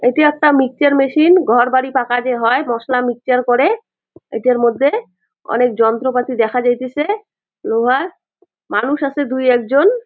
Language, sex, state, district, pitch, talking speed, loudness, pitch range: Bengali, female, West Bengal, Jalpaiguri, 260 Hz, 135 wpm, -15 LUFS, 245-300 Hz